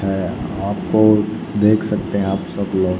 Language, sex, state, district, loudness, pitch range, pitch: Hindi, male, Haryana, Rohtak, -18 LUFS, 95-105 Hz, 100 Hz